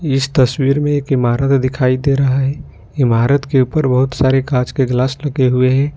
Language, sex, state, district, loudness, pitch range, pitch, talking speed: Hindi, male, Jharkhand, Ranchi, -15 LUFS, 130-140 Hz, 135 Hz, 200 wpm